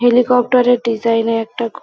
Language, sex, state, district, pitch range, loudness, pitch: Bengali, female, West Bengal, Kolkata, 230-245 Hz, -15 LUFS, 235 Hz